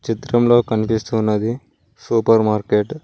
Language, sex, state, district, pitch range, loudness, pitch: Telugu, male, Telangana, Mahabubabad, 110-120 Hz, -17 LUFS, 115 Hz